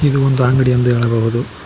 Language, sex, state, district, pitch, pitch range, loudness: Kannada, male, Karnataka, Koppal, 125 Hz, 115-130 Hz, -14 LUFS